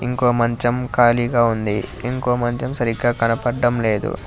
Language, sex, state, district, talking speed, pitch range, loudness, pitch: Telugu, male, Telangana, Hyderabad, 125 wpm, 115-125 Hz, -19 LUFS, 120 Hz